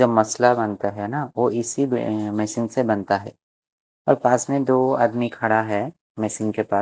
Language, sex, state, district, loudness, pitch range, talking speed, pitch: Hindi, male, Bihar, West Champaran, -22 LUFS, 105-125 Hz, 185 wpm, 115 Hz